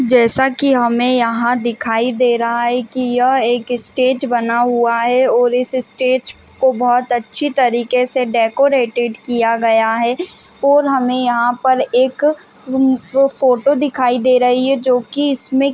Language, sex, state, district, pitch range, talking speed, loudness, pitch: Hindi, female, Chhattisgarh, Balrampur, 240-260 Hz, 155 wpm, -15 LUFS, 250 Hz